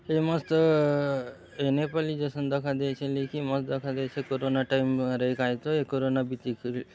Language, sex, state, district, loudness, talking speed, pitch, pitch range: Halbi, male, Chhattisgarh, Bastar, -28 LUFS, 190 wpm, 135 Hz, 130-145 Hz